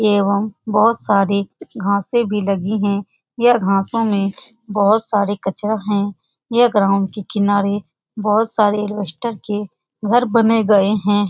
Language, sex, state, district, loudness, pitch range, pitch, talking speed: Hindi, female, Bihar, Saran, -17 LUFS, 200-220 Hz, 205 Hz, 120 wpm